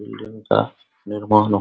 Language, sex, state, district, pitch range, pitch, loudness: Hindi, male, Bihar, Vaishali, 105-110 Hz, 105 Hz, -20 LUFS